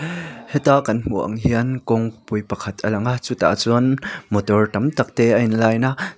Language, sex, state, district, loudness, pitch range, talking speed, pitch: Mizo, male, Mizoram, Aizawl, -19 LUFS, 110-130 Hz, 195 wpm, 115 Hz